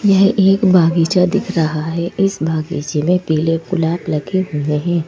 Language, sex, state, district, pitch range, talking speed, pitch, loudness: Hindi, female, Madhya Pradesh, Bhopal, 160-185 Hz, 165 wpm, 170 Hz, -16 LUFS